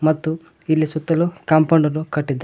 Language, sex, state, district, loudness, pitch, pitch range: Kannada, male, Karnataka, Koppal, -19 LUFS, 155 Hz, 155-160 Hz